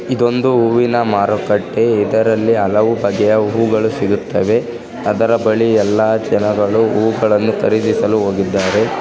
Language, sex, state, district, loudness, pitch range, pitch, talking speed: Kannada, male, Karnataka, Bijapur, -14 LUFS, 105-115 Hz, 110 Hz, 100 wpm